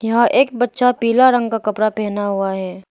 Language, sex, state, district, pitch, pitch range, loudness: Hindi, female, Arunachal Pradesh, Lower Dibang Valley, 225 Hz, 205-245 Hz, -16 LUFS